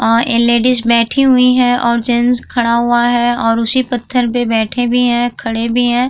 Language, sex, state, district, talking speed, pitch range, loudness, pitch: Hindi, female, Uttar Pradesh, Jyotiba Phule Nagar, 205 wpm, 235-245 Hz, -12 LUFS, 240 Hz